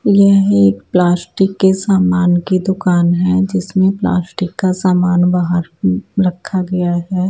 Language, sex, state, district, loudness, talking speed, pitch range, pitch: Hindi, female, Maharashtra, Gondia, -14 LUFS, 140 wpm, 175-190 Hz, 185 Hz